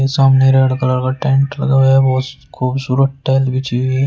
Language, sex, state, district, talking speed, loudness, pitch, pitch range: Hindi, male, Uttar Pradesh, Shamli, 160 wpm, -14 LUFS, 135 Hz, 130-135 Hz